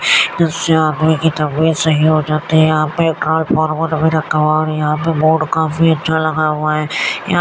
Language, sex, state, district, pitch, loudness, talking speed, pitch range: Hindi, female, Uttar Pradesh, Muzaffarnagar, 155 Hz, -14 LUFS, 80 wpm, 155-160 Hz